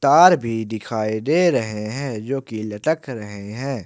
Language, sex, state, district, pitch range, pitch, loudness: Hindi, male, Jharkhand, Ranchi, 110-140 Hz, 115 Hz, -21 LUFS